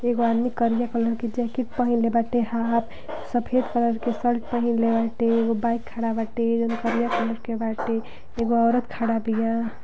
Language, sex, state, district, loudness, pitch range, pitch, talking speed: Bhojpuri, female, Uttar Pradesh, Gorakhpur, -24 LUFS, 230-235 Hz, 230 Hz, 175 wpm